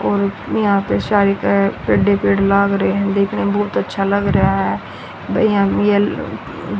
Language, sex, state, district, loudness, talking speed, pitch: Hindi, female, Haryana, Rohtak, -16 LUFS, 160 wpm, 200 Hz